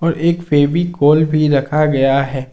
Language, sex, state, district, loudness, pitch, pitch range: Hindi, male, Jharkhand, Ranchi, -14 LUFS, 150 Hz, 140-165 Hz